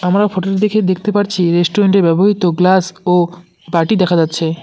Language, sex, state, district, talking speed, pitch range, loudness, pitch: Bengali, male, West Bengal, Cooch Behar, 180 wpm, 175-200 Hz, -14 LUFS, 185 Hz